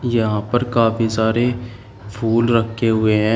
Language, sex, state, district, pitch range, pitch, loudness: Hindi, male, Uttar Pradesh, Shamli, 110-120 Hz, 115 Hz, -18 LUFS